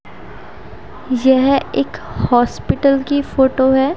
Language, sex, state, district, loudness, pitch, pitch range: Hindi, female, Haryana, Rohtak, -15 LUFS, 265 Hz, 260-275 Hz